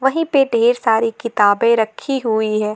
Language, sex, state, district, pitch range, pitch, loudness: Hindi, female, Jharkhand, Garhwa, 220-265 Hz, 230 Hz, -16 LUFS